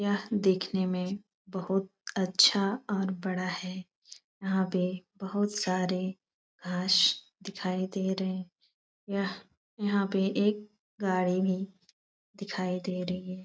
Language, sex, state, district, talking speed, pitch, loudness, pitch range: Hindi, female, Bihar, Supaul, 115 wpm, 190 Hz, -30 LUFS, 185-200 Hz